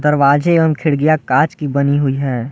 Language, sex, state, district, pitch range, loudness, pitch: Hindi, male, Jharkhand, Garhwa, 140-155 Hz, -14 LUFS, 145 Hz